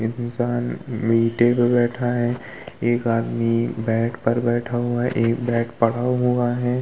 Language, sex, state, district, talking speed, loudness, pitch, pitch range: Hindi, male, Uttar Pradesh, Muzaffarnagar, 150 wpm, -21 LUFS, 120 Hz, 115-120 Hz